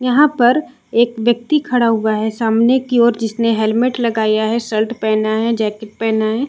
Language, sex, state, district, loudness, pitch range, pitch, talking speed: Hindi, female, Chhattisgarh, Balrampur, -16 LUFS, 220-240 Hz, 230 Hz, 185 wpm